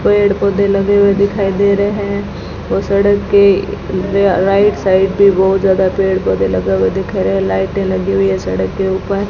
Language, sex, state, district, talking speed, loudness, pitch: Hindi, female, Rajasthan, Bikaner, 205 wpm, -13 LUFS, 195 Hz